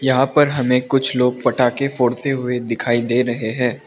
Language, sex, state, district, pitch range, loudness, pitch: Hindi, male, Arunachal Pradesh, Lower Dibang Valley, 120-135 Hz, -18 LUFS, 125 Hz